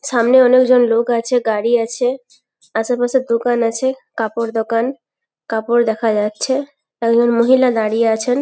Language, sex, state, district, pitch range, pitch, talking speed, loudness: Bengali, female, West Bengal, Paschim Medinipur, 230-255 Hz, 235 Hz, 130 wpm, -16 LUFS